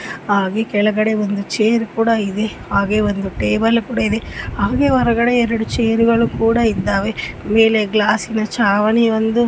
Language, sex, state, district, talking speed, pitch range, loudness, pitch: Kannada, female, Karnataka, Mysore, 140 wpm, 205-230 Hz, -16 LUFS, 220 Hz